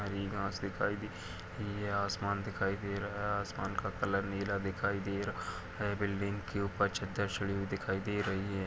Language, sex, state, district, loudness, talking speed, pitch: Hindi, male, Uttar Pradesh, Etah, -36 LUFS, 200 wpm, 100 Hz